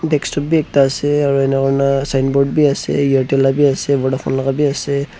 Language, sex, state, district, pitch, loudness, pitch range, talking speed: Nagamese, male, Nagaland, Dimapur, 140 Hz, -15 LUFS, 135-145 Hz, 175 wpm